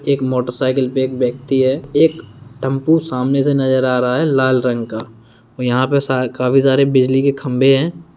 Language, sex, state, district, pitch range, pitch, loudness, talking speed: Hindi, male, Bihar, Darbhanga, 125-135 Hz, 130 Hz, -16 LUFS, 190 wpm